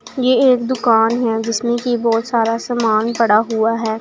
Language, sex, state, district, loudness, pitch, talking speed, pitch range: Hindi, female, Punjab, Pathankot, -16 LUFS, 230 Hz, 180 wpm, 225-240 Hz